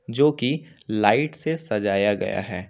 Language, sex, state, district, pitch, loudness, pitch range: Hindi, male, Jharkhand, Ranchi, 115 Hz, -23 LUFS, 105-150 Hz